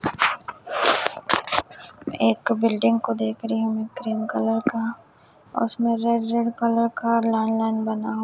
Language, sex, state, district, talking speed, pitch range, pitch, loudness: Hindi, male, Chhattisgarh, Raipur, 130 wpm, 220-230 Hz, 225 Hz, -23 LUFS